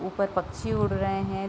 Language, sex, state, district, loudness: Hindi, female, Uttar Pradesh, Jalaun, -28 LUFS